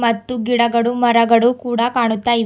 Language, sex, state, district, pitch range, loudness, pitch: Kannada, female, Karnataka, Bidar, 230-245 Hz, -16 LUFS, 235 Hz